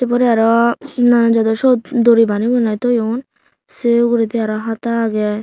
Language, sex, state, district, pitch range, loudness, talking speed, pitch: Chakma, female, Tripura, Unakoti, 225-240 Hz, -15 LUFS, 155 wpm, 235 Hz